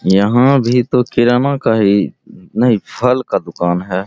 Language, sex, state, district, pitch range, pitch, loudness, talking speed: Hindi, male, Bihar, Araria, 100-125 Hz, 120 Hz, -14 LUFS, 160 wpm